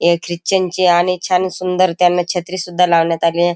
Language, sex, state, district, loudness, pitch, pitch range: Marathi, male, Maharashtra, Chandrapur, -15 LUFS, 180 Hz, 175-185 Hz